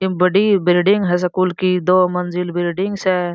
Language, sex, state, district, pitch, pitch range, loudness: Marwari, female, Rajasthan, Churu, 180 Hz, 180-190 Hz, -16 LUFS